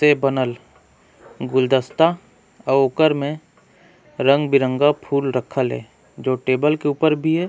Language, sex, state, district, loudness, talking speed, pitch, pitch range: Surgujia, male, Chhattisgarh, Sarguja, -19 LUFS, 120 wpm, 140 Hz, 130-155 Hz